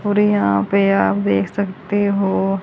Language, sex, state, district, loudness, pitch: Hindi, female, Haryana, Rohtak, -17 LUFS, 195 Hz